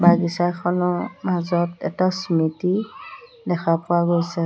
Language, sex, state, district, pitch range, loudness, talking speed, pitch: Assamese, female, Assam, Sonitpur, 170-180 Hz, -22 LUFS, 95 wpm, 175 Hz